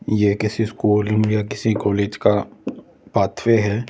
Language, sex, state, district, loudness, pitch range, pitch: Hindi, male, Delhi, New Delhi, -19 LUFS, 105-110 Hz, 105 Hz